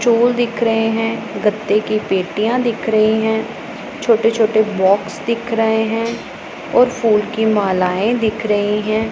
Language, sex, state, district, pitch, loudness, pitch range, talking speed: Hindi, female, Punjab, Pathankot, 220 Hz, -16 LUFS, 210-230 Hz, 150 wpm